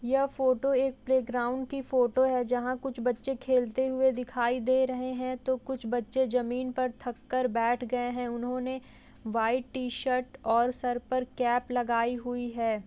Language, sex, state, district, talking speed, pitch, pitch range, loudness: Hindi, female, Bihar, Gaya, 170 wpm, 250 Hz, 245-260 Hz, -29 LUFS